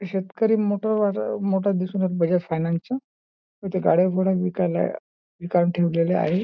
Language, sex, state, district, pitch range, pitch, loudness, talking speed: Marathi, male, Maharashtra, Nagpur, 175-200 Hz, 185 Hz, -23 LUFS, 170 wpm